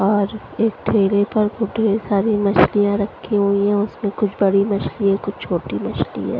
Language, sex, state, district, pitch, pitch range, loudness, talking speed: Hindi, female, Punjab, Fazilka, 205 Hz, 200-210 Hz, -19 LUFS, 185 wpm